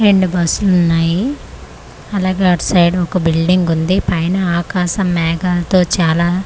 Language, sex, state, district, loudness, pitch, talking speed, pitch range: Telugu, female, Andhra Pradesh, Manyam, -14 LUFS, 180 Hz, 100 wpm, 170-185 Hz